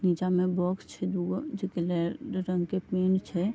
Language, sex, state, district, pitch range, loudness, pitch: Maithili, female, Bihar, Vaishali, 180-190 Hz, -30 LUFS, 185 Hz